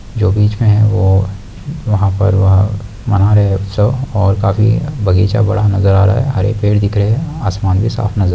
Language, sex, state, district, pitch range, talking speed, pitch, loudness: Hindi, male, Bihar, East Champaran, 95-110 Hz, 210 wpm, 105 Hz, -13 LUFS